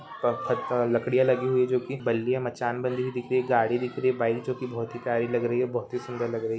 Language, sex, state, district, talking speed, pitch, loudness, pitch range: Hindi, male, Jharkhand, Jamtara, 310 wpm, 120 Hz, -27 LUFS, 120-125 Hz